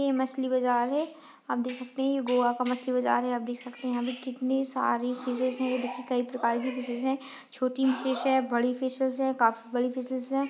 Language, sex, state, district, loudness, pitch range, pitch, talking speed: Hindi, female, Goa, North and South Goa, -29 LUFS, 250-265 Hz, 255 Hz, 235 wpm